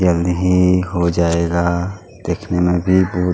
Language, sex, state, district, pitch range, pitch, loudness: Hindi, male, Chhattisgarh, Kabirdham, 85-90 Hz, 90 Hz, -17 LUFS